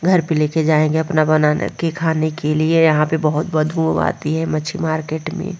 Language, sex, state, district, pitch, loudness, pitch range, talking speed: Hindi, female, Bihar, Vaishali, 160 Hz, -17 LUFS, 155-160 Hz, 215 wpm